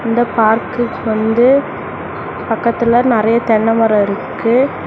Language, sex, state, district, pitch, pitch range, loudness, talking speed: Tamil, female, Tamil Nadu, Namakkal, 230 Hz, 220-240 Hz, -14 LUFS, 100 wpm